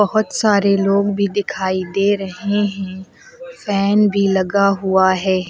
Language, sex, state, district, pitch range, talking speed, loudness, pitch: Hindi, female, Uttar Pradesh, Lucknow, 190-205 Hz, 140 wpm, -17 LUFS, 200 Hz